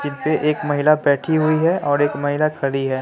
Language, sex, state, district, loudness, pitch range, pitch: Hindi, male, Bihar, Katihar, -18 LUFS, 145-155 Hz, 145 Hz